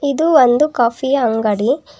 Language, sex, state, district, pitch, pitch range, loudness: Kannada, female, Karnataka, Bangalore, 270 Hz, 235-295 Hz, -15 LUFS